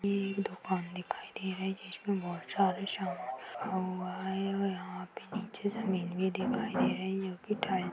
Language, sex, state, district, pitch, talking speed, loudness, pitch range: Hindi, female, Chhattisgarh, Bilaspur, 190 Hz, 175 wpm, -35 LUFS, 185-195 Hz